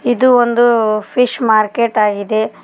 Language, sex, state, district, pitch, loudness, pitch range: Kannada, female, Karnataka, Koppal, 235 Hz, -13 LUFS, 215-245 Hz